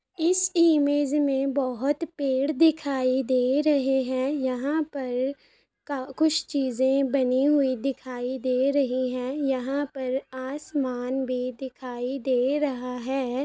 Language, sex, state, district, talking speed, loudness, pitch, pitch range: Hindi, female, Uttar Pradesh, Muzaffarnagar, 135 wpm, -25 LUFS, 270 Hz, 255-285 Hz